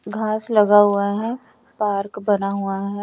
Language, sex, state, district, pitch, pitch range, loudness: Hindi, female, Chandigarh, Chandigarh, 205 Hz, 200-215 Hz, -19 LUFS